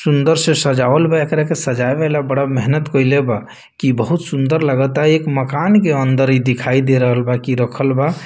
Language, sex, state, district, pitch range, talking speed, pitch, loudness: Bhojpuri, male, Bihar, Muzaffarpur, 130-155 Hz, 180 wpm, 140 Hz, -15 LUFS